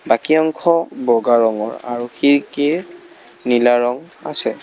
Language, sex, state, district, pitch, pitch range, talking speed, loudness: Assamese, male, Assam, Kamrup Metropolitan, 135 Hz, 120-160 Hz, 115 wpm, -17 LUFS